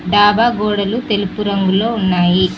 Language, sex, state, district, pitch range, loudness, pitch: Telugu, female, Telangana, Mahabubabad, 190-210 Hz, -15 LUFS, 205 Hz